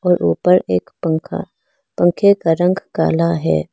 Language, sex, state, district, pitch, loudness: Hindi, female, Arunachal Pradesh, Lower Dibang Valley, 165 Hz, -16 LUFS